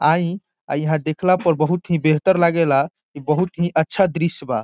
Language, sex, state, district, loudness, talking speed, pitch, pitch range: Bhojpuri, male, Bihar, Saran, -19 LUFS, 205 wpm, 170 Hz, 155-180 Hz